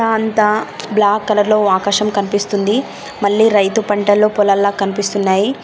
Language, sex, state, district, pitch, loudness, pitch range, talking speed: Telugu, female, Andhra Pradesh, Anantapur, 205 Hz, -14 LUFS, 200-215 Hz, 130 wpm